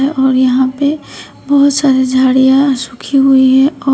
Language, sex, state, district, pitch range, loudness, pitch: Hindi, female, Uttar Pradesh, Shamli, 260-280 Hz, -11 LUFS, 265 Hz